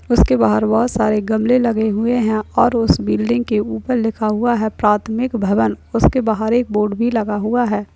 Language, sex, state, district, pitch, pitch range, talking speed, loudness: Hindi, female, Uttar Pradesh, Gorakhpur, 220 Hz, 210-235 Hz, 195 wpm, -17 LUFS